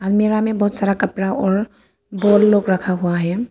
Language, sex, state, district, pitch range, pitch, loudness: Hindi, female, Arunachal Pradesh, Papum Pare, 190-210 Hz, 200 Hz, -17 LUFS